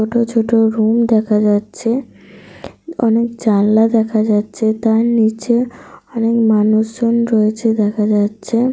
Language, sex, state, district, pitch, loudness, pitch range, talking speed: Bengali, female, Jharkhand, Sahebganj, 225 Hz, -15 LUFS, 215-230 Hz, 110 wpm